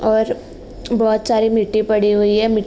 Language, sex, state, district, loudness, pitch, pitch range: Hindi, female, Uttar Pradesh, Jalaun, -16 LUFS, 220 Hz, 215-220 Hz